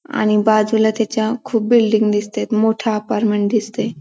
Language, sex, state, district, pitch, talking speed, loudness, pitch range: Marathi, female, Maharashtra, Pune, 220 Hz, 135 wpm, -17 LUFS, 215-225 Hz